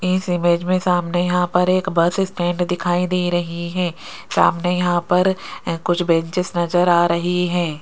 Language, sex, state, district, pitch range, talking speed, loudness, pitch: Hindi, female, Rajasthan, Jaipur, 175-180 Hz, 170 wpm, -19 LUFS, 175 Hz